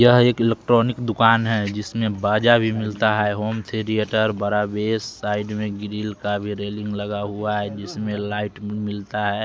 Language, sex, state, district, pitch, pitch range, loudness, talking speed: Hindi, male, Bihar, West Champaran, 105 Hz, 105-110 Hz, -22 LUFS, 170 wpm